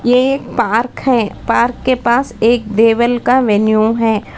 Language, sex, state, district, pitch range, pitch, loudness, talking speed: Hindi, female, Karnataka, Bangalore, 220-250 Hz, 235 Hz, -14 LUFS, 165 wpm